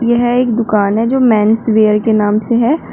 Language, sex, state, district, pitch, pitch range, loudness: Hindi, female, Uttar Pradesh, Shamli, 225 Hz, 215-240 Hz, -12 LUFS